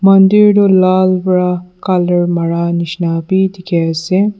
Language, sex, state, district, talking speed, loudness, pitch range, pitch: Nagamese, male, Nagaland, Dimapur, 120 wpm, -12 LUFS, 170-190 Hz, 185 Hz